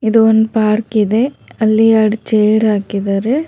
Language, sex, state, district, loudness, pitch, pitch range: Kannada, female, Karnataka, Bangalore, -13 LUFS, 220 Hz, 215-225 Hz